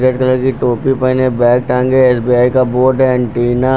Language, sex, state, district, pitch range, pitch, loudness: Hindi, male, Uttar Pradesh, Lucknow, 125-130 Hz, 130 Hz, -12 LUFS